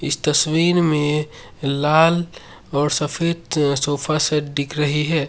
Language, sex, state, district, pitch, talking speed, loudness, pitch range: Hindi, male, Assam, Sonitpur, 150 Hz, 125 wpm, -19 LUFS, 145-160 Hz